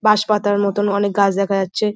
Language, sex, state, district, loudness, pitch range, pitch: Bengali, female, West Bengal, Jhargram, -17 LUFS, 200-210 Hz, 205 Hz